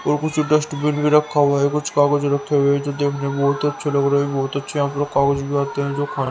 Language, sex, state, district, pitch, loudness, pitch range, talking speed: Hindi, male, Haryana, Rohtak, 145 Hz, -19 LUFS, 140-145 Hz, 275 wpm